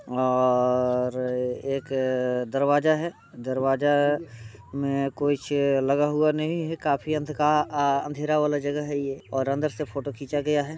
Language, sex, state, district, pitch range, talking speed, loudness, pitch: Hindi, male, Bihar, Muzaffarpur, 130-150 Hz, 145 wpm, -25 LUFS, 140 Hz